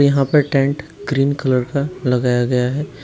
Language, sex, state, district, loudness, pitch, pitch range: Hindi, male, Uttar Pradesh, Shamli, -18 LUFS, 135 Hz, 125-140 Hz